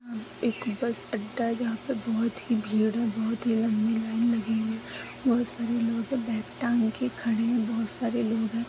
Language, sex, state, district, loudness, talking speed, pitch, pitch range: Hindi, female, Chhattisgarh, Balrampur, -28 LUFS, 200 wpm, 230 Hz, 225-235 Hz